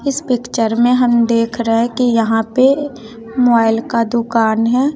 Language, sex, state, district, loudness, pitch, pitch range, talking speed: Hindi, female, Bihar, West Champaran, -14 LUFS, 235 Hz, 225-250 Hz, 155 wpm